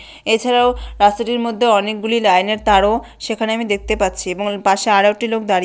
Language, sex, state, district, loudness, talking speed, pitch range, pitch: Bengali, female, West Bengal, Malda, -16 LUFS, 170 wpm, 200-230 Hz, 215 Hz